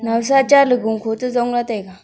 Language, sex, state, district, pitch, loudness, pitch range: Wancho, female, Arunachal Pradesh, Longding, 240 Hz, -16 LUFS, 220-250 Hz